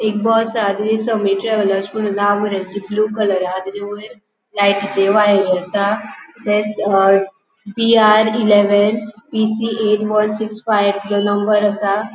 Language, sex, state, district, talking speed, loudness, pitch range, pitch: Konkani, female, Goa, North and South Goa, 125 wpm, -16 LUFS, 200-215 Hz, 210 Hz